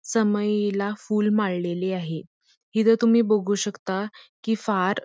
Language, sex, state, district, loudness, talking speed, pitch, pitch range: Marathi, female, Karnataka, Belgaum, -24 LUFS, 130 wpm, 210 Hz, 195-220 Hz